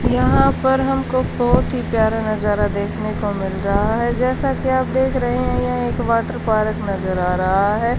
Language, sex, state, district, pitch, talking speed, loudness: Hindi, female, Haryana, Charkhi Dadri, 190 Hz, 195 wpm, -19 LUFS